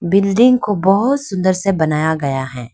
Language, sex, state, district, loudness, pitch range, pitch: Hindi, female, Arunachal Pradesh, Lower Dibang Valley, -15 LUFS, 160-205 Hz, 190 Hz